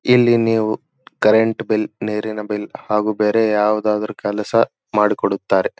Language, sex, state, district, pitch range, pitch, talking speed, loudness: Kannada, male, Karnataka, Dharwad, 105-115 Hz, 110 Hz, 115 wpm, -18 LUFS